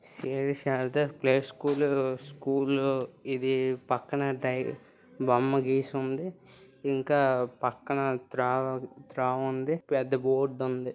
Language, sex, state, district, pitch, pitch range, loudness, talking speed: Telugu, male, Andhra Pradesh, Srikakulam, 135 Hz, 130-135 Hz, -29 LUFS, 95 wpm